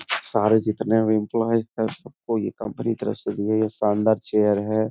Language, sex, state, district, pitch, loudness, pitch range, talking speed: Hindi, male, Uttar Pradesh, Etah, 110 Hz, -23 LUFS, 105-110 Hz, 195 wpm